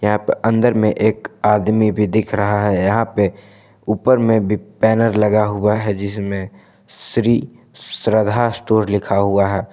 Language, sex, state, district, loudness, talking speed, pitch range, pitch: Hindi, male, Jharkhand, Palamu, -17 LUFS, 160 wpm, 100-110 Hz, 105 Hz